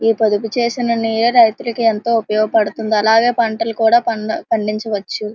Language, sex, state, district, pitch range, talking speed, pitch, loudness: Telugu, female, Andhra Pradesh, Srikakulam, 215-235 Hz, 125 wpm, 225 Hz, -16 LUFS